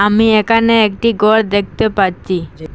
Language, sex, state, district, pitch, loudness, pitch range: Bengali, female, Assam, Hailakandi, 215 Hz, -13 LUFS, 195-220 Hz